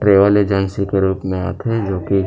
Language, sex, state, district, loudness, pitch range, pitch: Chhattisgarhi, male, Chhattisgarh, Rajnandgaon, -17 LUFS, 95-100 Hz, 100 Hz